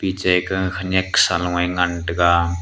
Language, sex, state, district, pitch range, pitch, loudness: Wancho, male, Arunachal Pradesh, Longding, 85-95 Hz, 90 Hz, -19 LUFS